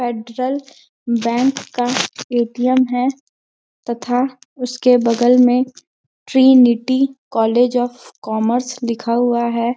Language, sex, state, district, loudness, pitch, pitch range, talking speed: Hindi, female, Chhattisgarh, Balrampur, -17 LUFS, 245 Hz, 235-255 Hz, 100 wpm